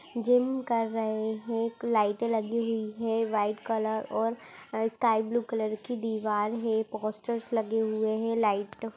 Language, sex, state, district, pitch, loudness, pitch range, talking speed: Hindi, female, Bihar, Bhagalpur, 225 Hz, -29 LUFS, 215-230 Hz, 160 wpm